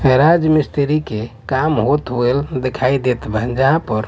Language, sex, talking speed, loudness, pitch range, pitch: Bhojpuri, male, 160 wpm, -17 LUFS, 120-150 Hz, 130 Hz